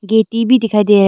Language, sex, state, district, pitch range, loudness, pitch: Hindi, female, Arunachal Pradesh, Longding, 210-230 Hz, -13 LUFS, 220 Hz